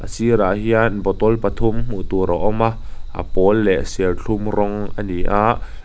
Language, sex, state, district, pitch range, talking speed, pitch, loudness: Mizo, male, Mizoram, Aizawl, 95-115 Hz, 185 wpm, 105 Hz, -19 LUFS